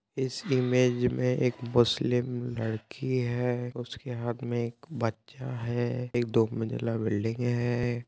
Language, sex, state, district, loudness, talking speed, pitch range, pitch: Hindi, male, Uttar Pradesh, Muzaffarnagar, -29 LUFS, 135 wpm, 120-125 Hz, 120 Hz